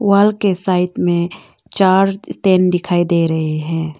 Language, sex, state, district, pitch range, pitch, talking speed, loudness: Hindi, female, Arunachal Pradesh, Longding, 170-195 Hz, 180 Hz, 150 wpm, -16 LUFS